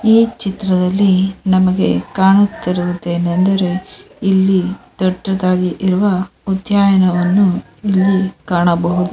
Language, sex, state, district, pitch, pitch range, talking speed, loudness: Kannada, female, Karnataka, Mysore, 190 Hz, 180-195 Hz, 70 wpm, -15 LUFS